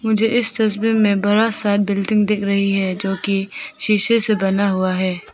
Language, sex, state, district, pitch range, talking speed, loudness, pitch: Hindi, female, Arunachal Pradesh, Papum Pare, 195-220 Hz, 190 wpm, -17 LUFS, 205 Hz